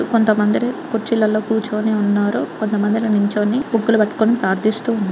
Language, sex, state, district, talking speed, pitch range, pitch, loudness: Telugu, female, Andhra Pradesh, Guntur, 140 wpm, 210-225 Hz, 215 Hz, -18 LUFS